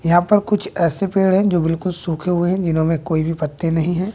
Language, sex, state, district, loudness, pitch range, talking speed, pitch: Hindi, male, Bihar, West Champaran, -18 LUFS, 165-190 Hz, 260 wpm, 175 Hz